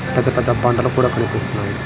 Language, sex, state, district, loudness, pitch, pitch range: Telugu, male, Andhra Pradesh, Srikakulam, -18 LUFS, 125 Hz, 115-125 Hz